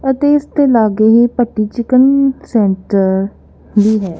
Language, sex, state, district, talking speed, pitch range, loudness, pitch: Punjabi, female, Punjab, Kapurthala, 145 wpm, 210-265 Hz, -12 LUFS, 230 Hz